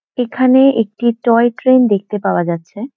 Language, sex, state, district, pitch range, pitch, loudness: Bengali, female, West Bengal, Jhargram, 205-255 Hz, 235 Hz, -14 LUFS